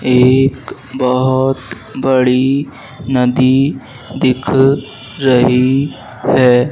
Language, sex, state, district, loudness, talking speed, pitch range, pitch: Hindi, male, Madhya Pradesh, Dhar, -13 LUFS, 65 wpm, 125-135 Hz, 130 Hz